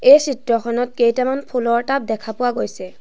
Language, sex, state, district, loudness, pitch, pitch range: Assamese, female, Assam, Sonitpur, -19 LUFS, 245 Hz, 235-260 Hz